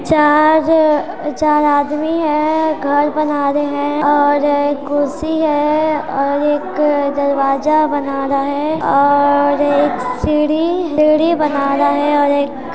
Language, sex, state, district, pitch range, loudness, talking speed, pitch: Hindi, female, Chhattisgarh, Sarguja, 285-305 Hz, -14 LUFS, 120 wpm, 295 Hz